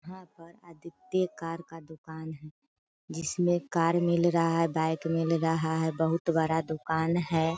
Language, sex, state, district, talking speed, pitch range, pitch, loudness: Hindi, female, Bihar, Sitamarhi, 160 wpm, 160-170 Hz, 165 Hz, -29 LUFS